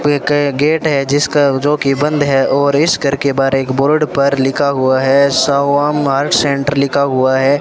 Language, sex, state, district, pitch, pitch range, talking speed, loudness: Hindi, male, Rajasthan, Bikaner, 140 Hz, 135-145 Hz, 205 wpm, -13 LUFS